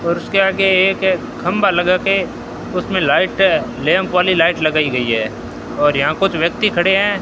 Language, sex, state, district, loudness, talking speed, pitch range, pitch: Hindi, male, Rajasthan, Bikaner, -15 LUFS, 165 wpm, 155-195 Hz, 180 Hz